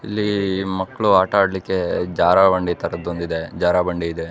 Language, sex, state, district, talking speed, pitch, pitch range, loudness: Kannada, male, Karnataka, Mysore, 140 wpm, 95 Hz, 85-95 Hz, -19 LUFS